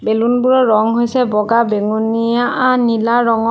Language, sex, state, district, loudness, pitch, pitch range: Assamese, female, Assam, Sonitpur, -14 LUFS, 230 Hz, 220-245 Hz